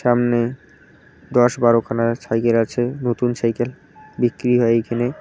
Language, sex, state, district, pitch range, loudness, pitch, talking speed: Bengali, male, West Bengal, Cooch Behar, 115-125 Hz, -19 LUFS, 120 Hz, 115 wpm